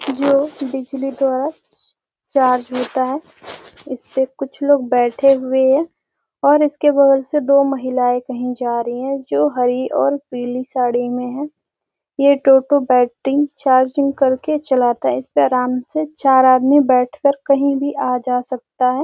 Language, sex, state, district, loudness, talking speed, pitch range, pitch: Hindi, female, Bihar, Gopalganj, -16 LUFS, 155 wpm, 250-280 Hz, 265 Hz